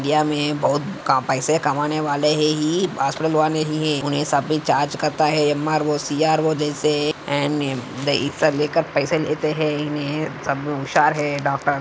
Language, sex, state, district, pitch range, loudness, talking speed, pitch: Hindi, male, Maharashtra, Aurangabad, 145-155 Hz, -20 LUFS, 145 wpm, 150 Hz